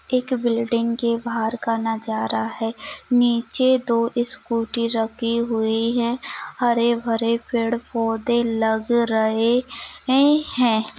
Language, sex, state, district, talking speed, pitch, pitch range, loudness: Hindi, female, Maharashtra, Chandrapur, 105 wpm, 235 Hz, 225-245 Hz, -21 LUFS